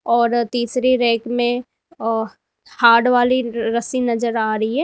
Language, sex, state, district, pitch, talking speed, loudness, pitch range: Hindi, female, Uttar Pradesh, Lalitpur, 235 Hz, 135 wpm, -18 LUFS, 230-245 Hz